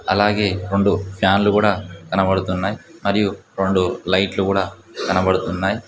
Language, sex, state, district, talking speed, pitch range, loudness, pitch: Telugu, male, Telangana, Mahabubabad, 100 wpm, 95-105 Hz, -19 LUFS, 95 Hz